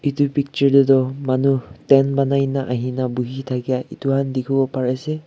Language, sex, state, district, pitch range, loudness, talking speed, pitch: Nagamese, male, Nagaland, Kohima, 130-140 Hz, -19 LUFS, 150 wpm, 135 Hz